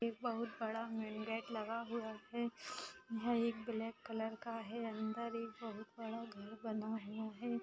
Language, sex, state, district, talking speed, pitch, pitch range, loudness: Hindi, female, Bihar, Bhagalpur, 175 wpm, 225 Hz, 220-230 Hz, -44 LUFS